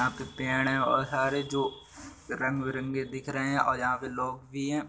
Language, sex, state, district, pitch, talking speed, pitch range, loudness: Bundeli, male, Uttar Pradesh, Budaun, 130 Hz, 220 wpm, 130-135 Hz, -30 LUFS